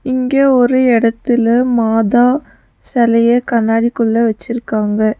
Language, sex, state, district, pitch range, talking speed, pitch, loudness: Tamil, female, Tamil Nadu, Nilgiris, 225-250 Hz, 80 wpm, 235 Hz, -13 LUFS